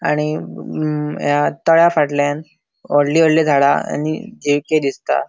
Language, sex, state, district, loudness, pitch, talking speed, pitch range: Konkani, male, Goa, North and South Goa, -17 LUFS, 150 Hz, 115 wpm, 145-155 Hz